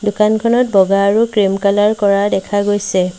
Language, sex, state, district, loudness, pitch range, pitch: Assamese, female, Assam, Sonitpur, -14 LUFS, 195-210 Hz, 205 Hz